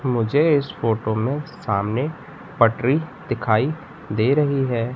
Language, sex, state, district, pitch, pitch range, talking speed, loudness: Hindi, male, Madhya Pradesh, Katni, 125 Hz, 115-145 Hz, 120 wpm, -21 LUFS